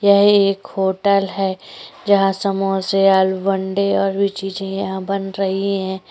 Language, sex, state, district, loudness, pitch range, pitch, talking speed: Hindi, female, Maharashtra, Chandrapur, -18 LUFS, 190-200 Hz, 195 Hz, 135 wpm